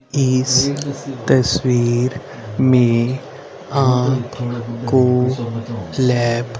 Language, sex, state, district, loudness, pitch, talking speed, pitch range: Hindi, male, Haryana, Rohtak, -17 LUFS, 125 Hz, 65 wpm, 120-130 Hz